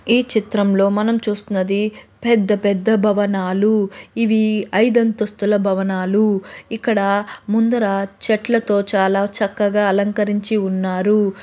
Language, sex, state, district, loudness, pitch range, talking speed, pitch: Telugu, female, Andhra Pradesh, Krishna, -18 LUFS, 200-220 Hz, 105 wpm, 205 Hz